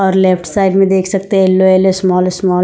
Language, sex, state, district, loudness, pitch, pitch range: Hindi, female, Himachal Pradesh, Shimla, -12 LUFS, 190 Hz, 185-195 Hz